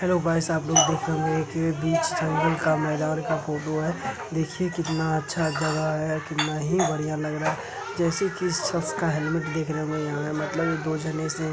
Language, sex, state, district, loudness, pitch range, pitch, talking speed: Hindi, male, Uttar Pradesh, Jalaun, -26 LUFS, 155-165 Hz, 160 Hz, 210 wpm